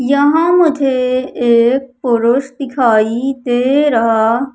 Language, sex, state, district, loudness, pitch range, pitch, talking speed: Hindi, female, Madhya Pradesh, Umaria, -13 LUFS, 235-275 Hz, 255 Hz, 90 wpm